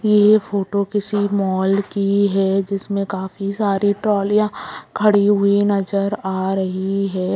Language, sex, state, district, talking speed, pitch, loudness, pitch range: Hindi, female, Bihar, Purnia, 130 wpm, 200 Hz, -18 LUFS, 195-205 Hz